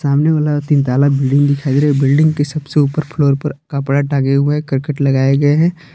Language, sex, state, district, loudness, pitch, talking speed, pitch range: Hindi, male, Jharkhand, Palamu, -14 LUFS, 145 Hz, 230 wpm, 140-150 Hz